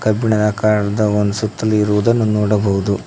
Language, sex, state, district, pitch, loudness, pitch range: Kannada, male, Karnataka, Koppal, 105 Hz, -16 LUFS, 105-110 Hz